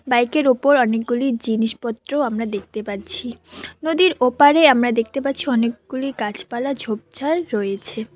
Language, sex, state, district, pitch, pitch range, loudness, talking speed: Bengali, female, West Bengal, Cooch Behar, 240 Hz, 225-275 Hz, -19 LUFS, 125 wpm